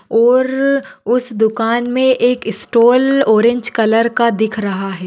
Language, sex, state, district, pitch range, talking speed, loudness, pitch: Hindi, female, Maharashtra, Pune, 220-250 Hz, 140 wpm, -14 LUFS, 235 Hz